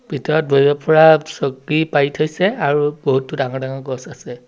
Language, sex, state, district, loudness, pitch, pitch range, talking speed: Assamese, male, Assam, Sonitpur, -16 LUFS, 145 Hz, 135-155 Hz, 160 wpm